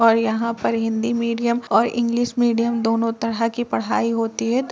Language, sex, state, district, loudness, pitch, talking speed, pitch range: Hindi, female, Uttar Pradesh, Etah, -21 LUFS, 230 Hz, 190 wpm, 225-235 Hz